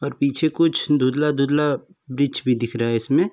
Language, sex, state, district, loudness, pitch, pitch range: Hindi, male, Uttar Pradesh, Varanasi, -21 LUFS, 140 Hz, 130-150 Hz